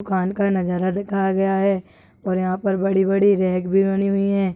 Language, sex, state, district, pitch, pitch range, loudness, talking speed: Hindi, female, Rajasthan, Churu, 195 Hz, 185-195 Hz, -20 LUFS, 210 wpm